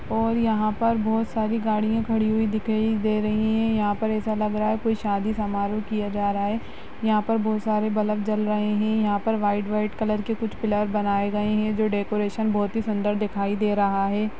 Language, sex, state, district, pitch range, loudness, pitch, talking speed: Hindi, female, Chhattisgarh, Rajnandgaon, 210-220 Hz, -24 LUFS, 215 Hz, 225 wpm